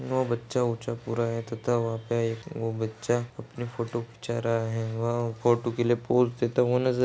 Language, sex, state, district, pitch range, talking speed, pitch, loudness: Hindi, male, Goa, North and South Goa, 115-120 Hz, 185 wpm, 120 Hz, -28 LUFS